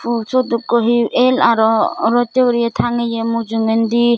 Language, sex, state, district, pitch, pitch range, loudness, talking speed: Chakma, female, Tripura, Dhalai, 235 Hz, 230-240 Hz, -15 LUFS, 145 wpm